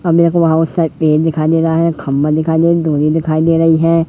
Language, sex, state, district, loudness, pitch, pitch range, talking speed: Hindi, male, Madhya Pradesh, Katni, -13 LUFS, 160 Hz, 155-165 Hz, 220 wpm